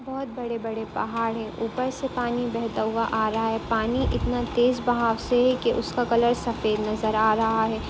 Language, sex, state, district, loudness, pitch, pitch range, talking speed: Hindi, female, Bihar, Saran, -25 LUFS, 230 Hz, 220-245 Hz, 195 wpm